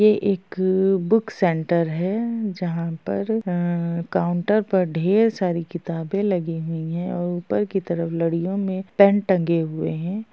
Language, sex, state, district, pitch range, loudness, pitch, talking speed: Hindi, female, Bihar, Gopalganj, 170-200 Hz, -22 LUFS, 180 Hz, 150 wpm